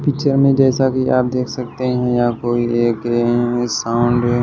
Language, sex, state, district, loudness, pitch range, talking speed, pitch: Hindi, male, Odisha, Malkangiri, -17 LUFS, 120-130 Hz, 165 wpm, 120 Hz